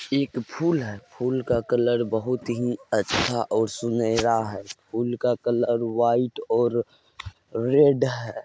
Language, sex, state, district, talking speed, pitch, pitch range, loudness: Maithili, male, Bihar, Madhepura, 135 wpm, 120 Hz, 115-125 Hz, -24 LUFS